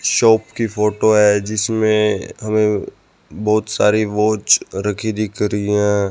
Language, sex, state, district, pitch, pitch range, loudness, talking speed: Hindi, male, Haryana, Rohtak, 105 Hz, 105-110 Hz, -17 LUFS, 125 wpm